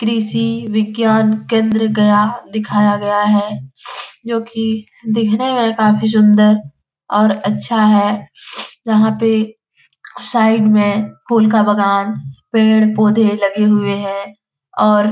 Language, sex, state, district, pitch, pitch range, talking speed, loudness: Hindi, female, Bihar, Jahanabad, 215 Hz, 205-220 Hz, 115 wpm, -14 LUFS